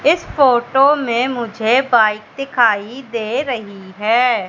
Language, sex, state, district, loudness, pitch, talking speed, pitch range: Hindi, female, Madhya Pradesh, Katni, -16 LUFS, 240 Hz, 120 wpm, 220-265 Hz